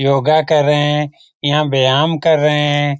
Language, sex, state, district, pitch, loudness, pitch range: Hindi, male, Bihar, Lakhisarai, 150 Hz, -14 LUFS, 145-150 Hz